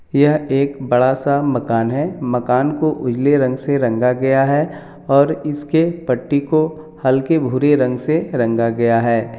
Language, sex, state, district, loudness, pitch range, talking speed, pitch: Hindi, male, Jharkhand, Jamtara, -17 LUFS, 125-150 Hz, 165 wpm, 140 Hz